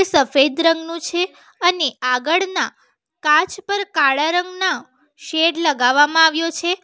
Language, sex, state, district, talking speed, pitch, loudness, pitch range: Gujarati, female, Gujarat, Valsad, 115 wpm, 330 Hz, -17 LUFS, 300-355 Hz